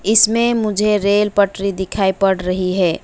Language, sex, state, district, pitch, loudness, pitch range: Hindi, female, West Bengal, Alipurduar, 200 Hz, -16 LUFS, 190-210 Hz